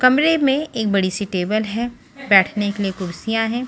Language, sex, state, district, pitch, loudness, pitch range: Hindi, female, Punjab, Pathankot, 215 Hz, -19 LUFS, 200-255 Hz